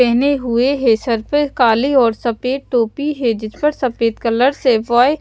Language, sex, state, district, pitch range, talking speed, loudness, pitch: Hindi, female, Chandigarh, Chandigarh, 230-275 Hz, 185 wpm, -16 LUFS, 245 Hz